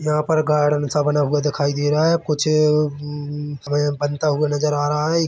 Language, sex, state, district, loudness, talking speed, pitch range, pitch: Hindi, male, Chhattisgarh, Bilaspur, -20 LUFS, 205 wpm, 145-150 Hz, 150 Hz